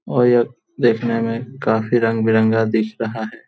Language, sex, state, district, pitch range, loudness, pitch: Hindi, male, Jharkhand, Jamtara, 110-120 Hz, -18 LUFS, 115 Hz